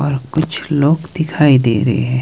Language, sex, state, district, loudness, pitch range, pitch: Hindi, male, Himachal Pradesh, Shimla, -15 LUFS, 125-155 Hz, 145 Hz